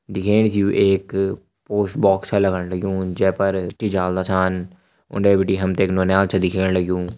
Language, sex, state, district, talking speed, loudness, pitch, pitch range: Hindi, male, Uttarakhand, Uttarkashi, 190 wpm, -19 LUFS, 95 Hz, 95-100 Hz